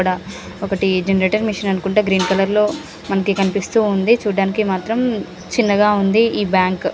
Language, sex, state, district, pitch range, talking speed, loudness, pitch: Telugu, female, Andhra Pradesh, Srikakulam, 195-210 Hz, 145 wpm, -17 LUFS, 200 Hz